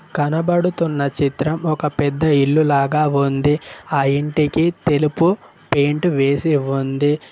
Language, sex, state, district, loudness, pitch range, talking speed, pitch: Telugu, male, Telangana, Mahabubabad, -18 LUFS, 140-155 Hz, 105 wpm, 150 Hz